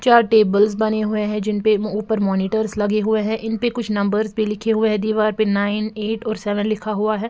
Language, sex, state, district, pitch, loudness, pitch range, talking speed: Hindi, female, Bihar, Patna, 215 Hz, -19 LUFS, 210-220 Hz, 240 wpm